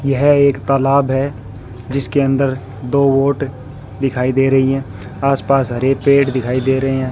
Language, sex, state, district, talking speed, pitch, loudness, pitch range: Hindi, male, Rajasthan, Bikaner, 170 wpm, 135 Hz, -15 LUFS, 130-140 Hz